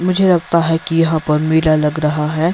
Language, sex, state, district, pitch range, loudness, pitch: Hindi, male, Himachal Pradesh, Shimla, 155-170 Hz, -15 LUFS, 160 Hz